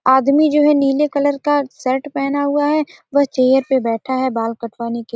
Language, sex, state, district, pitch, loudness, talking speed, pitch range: Hindi, female, Bihar, Gopalganj, 275 Hz, -17 LUFS, 220 wpm, 255-290 Hz